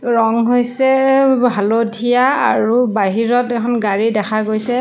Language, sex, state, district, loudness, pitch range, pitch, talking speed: Assamese, female, Assam, Sonitpur, -15 LUFS, 220-245 Hz, 235 Hz, 110 wpm